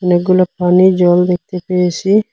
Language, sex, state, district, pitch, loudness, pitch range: Bengali, male, Assam, Hailakandi, 180 Hz, -13 LUFS, 180-185 Hz